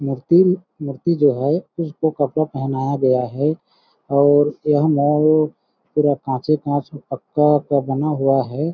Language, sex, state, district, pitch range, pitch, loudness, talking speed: Hindi, male, Chhattisgarh, Balrampur, 135-155 Hz, 145 Hz, -18 LUFS, 145 wpm